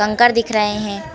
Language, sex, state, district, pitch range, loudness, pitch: Hindi, female, Uttar Pradesh, Jalaun, 210-235 Hz, -16 LUFS, 210 Hz